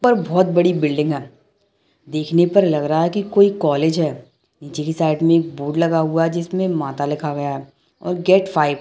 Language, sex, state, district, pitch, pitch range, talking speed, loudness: Hindi, male, Bihar, Kishanganj, 165 Hz, 150-180 Hz, 210 wpm, -18 LUFS